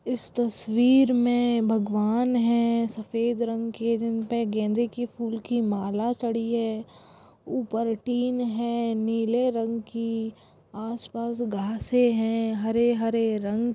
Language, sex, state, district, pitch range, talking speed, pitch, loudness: Hindi, female, Goa, North and South Goa, 225-240 Hz, 130 wpm, 230 Hz, -26 LUFS